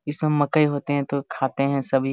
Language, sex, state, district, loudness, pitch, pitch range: Hindi, male, Jharkhand, Jamtara, -23 LUFS, 140 Hz, 135-145 Hz